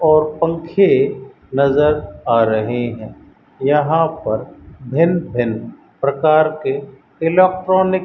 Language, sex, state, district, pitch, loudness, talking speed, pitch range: Hindi, male, Rajasthan, Bikaner, 150 Hz, -17 LUFS, 105 wpm, 130-165 Hz